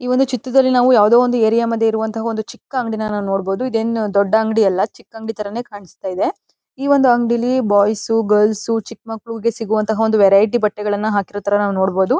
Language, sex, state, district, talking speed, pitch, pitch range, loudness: Kannada, female, Karnataka, Mysore, 170 wpm, 220 Hz, 205-240 Hz, -17 LUFS